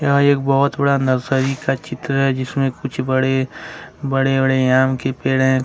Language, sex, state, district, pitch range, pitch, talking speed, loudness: Hindi, male, Jharkhand, Ranchi, 130-135 Hz, 135 Hz, 180 wpm, -18 LUFS